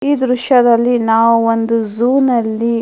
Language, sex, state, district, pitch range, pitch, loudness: Kannada, female, Karnataka, Mysore, 230-250 Hz, 235 Hz, -13 LUFS